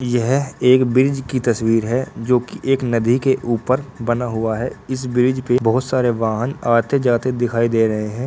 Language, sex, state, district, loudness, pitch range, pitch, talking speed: Hindi, male, Bihar, Purnia, -18 LUFS, 115-130 Hz, 125 Hz, 190 wpm